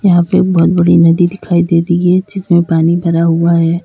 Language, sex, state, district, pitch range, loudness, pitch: Hindi, female, Uttar Pradesh, Lalitpur, 170-180 Hz, -11 LUFS, 175 Hz